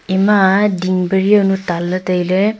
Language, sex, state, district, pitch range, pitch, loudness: Wancho, female, Arunachal Pradesh, Longding, 185-200 Hz, 190 Hz, -14 LUFS